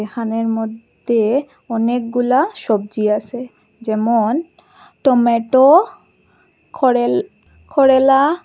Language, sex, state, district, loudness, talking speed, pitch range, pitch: Bengali, female, Assam, Hailakandi, -16 LUFS, 65 wpm, 225-275 Hz, 245 Hz